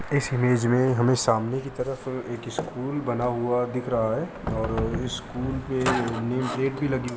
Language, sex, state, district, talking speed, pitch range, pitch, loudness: Hindi, male, Uttar Pradesh, Muzaffarnagar, 185 wpm, 120-130 Hz, 125 Hz, -26 LUFS